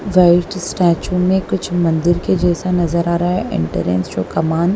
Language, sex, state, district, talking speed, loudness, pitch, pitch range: Hindi, female, Punjab, Kapurthala, 175 wpm, -16 LUFS, 175 Hz, 165-180 Hz